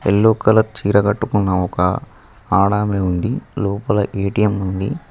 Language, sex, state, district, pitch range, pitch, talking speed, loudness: Telugu, male, Telangana, Mahabubabad, 100-110 Hz, 105 Hz, 115 wpm, -18 LUFS